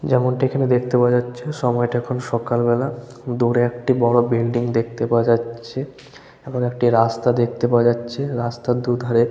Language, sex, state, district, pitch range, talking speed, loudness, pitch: Bengali, male, West Bengal, Malda, 120-125 Hz, 170 wpm, -20 LUFS, 120 Hz